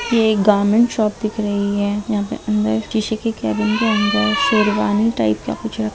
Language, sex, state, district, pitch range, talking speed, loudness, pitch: Hindi, female, Rajasthan, Churu, 200-220 Hz, 210 wpm, -18 LUFS, 210 Hz